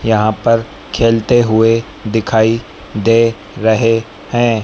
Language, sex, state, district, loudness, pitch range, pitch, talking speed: Hindi, male, Madhya Pradesh, Dhar, -14 LUFS, 110-115 Hz, 115 Hz, 105 wpm